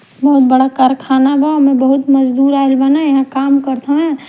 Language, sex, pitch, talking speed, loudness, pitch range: Bhojpuri, female, 270 Hz, 180 wpm, -12 LUFS, 265-280 Hz